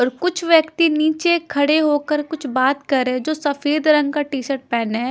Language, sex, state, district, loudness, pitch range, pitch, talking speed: Hindi, female, Chhattisgarh, Raipur, -18 LUFS, 270-310 Hz, 295 Hz, 225 wpm